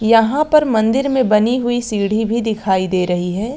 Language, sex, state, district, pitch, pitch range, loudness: Hindi, female, Chhattisgarh, Raigarh, 220 Hz, 205-245 Hz, -16 LUFS